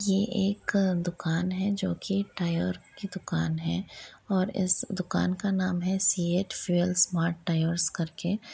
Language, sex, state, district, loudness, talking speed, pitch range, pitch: Hindi, female, Jharkhand, Jamtara, -28 LUFS, 160 wpm, 170-195 Hz, 185 Hz